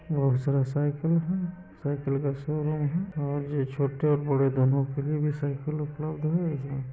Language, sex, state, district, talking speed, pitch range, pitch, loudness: Hindi, male, Bihar, East Champaran, 180 wpm, 140-155 Hz, 145 Hz, -28 LUFS